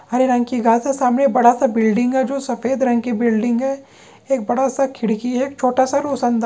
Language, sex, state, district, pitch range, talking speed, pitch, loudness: Hindi, male, Jharkhand, Sahebganj, 240-270 Hz, 230 wpm, 250 Hz, -18 LUFS